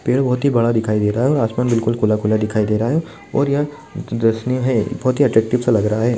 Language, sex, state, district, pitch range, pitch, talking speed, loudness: Hindi, male, Bihar, Jamui, 110-130 Hz, 115 Hz, 260 wpm, -18 LUFS